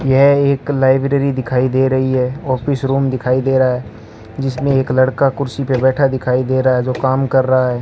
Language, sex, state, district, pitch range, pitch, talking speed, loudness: Hindi, male, Rajasthan, Bikaner, 130-135 Hz, 130 Hz, 215 wpm, -15 LUFS